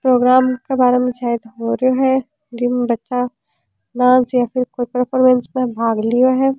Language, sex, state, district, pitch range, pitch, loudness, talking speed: Rajasthani, female, Rajasthan, Churu, 240-255 Hz, 250 Hz, -17 LUFS, 165 wpm